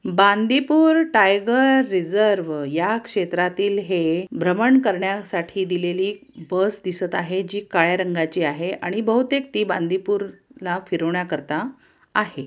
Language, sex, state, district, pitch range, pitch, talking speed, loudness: Marathi, female, Maharashtra, Pune, 175-220 Hz, 195 Hz, 110 wpm, -21 LUFS